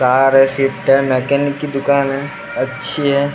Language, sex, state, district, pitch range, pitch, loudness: Hindi, male, Maharashtra, Gondia, 135-140 Hz, 135 Hz, -15 LUFS